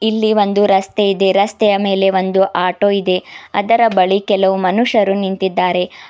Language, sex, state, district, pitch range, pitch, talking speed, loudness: Kannada, female, Karnataka, Bidar, 190-205 Hz, 195 Hz, 140 wpm, -14 LUFS